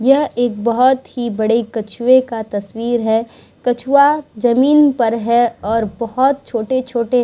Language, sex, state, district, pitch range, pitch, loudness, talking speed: Hindi, female, Bihar, Vaishali, 230-260 Hz, 240 Hz, -16 LUFS, 130 wpm